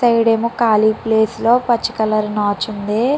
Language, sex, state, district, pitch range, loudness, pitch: Telugu, female, Andhra Pradesh, Chittoor, 215-235 Hz, -16 LUFS, 225 Hz